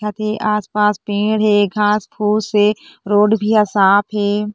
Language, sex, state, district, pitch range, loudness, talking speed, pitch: Chhattisgarhi, female, Chhattisgarh, Korba, 205-215 Hz, -16 LUFS, 160 wpm, 210 Hz